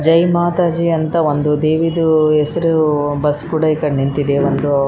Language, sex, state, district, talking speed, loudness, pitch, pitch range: Kannada, female, Karnataka, Raichur, 145 wpm, -15 LUFS, 155 Hz, 145-165 Hz